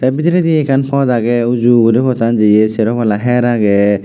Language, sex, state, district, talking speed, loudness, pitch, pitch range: Chakma, male, Tripura, West Tripura, 190 wpm, -12 LUFS, 120 Hz, 110-130 Hz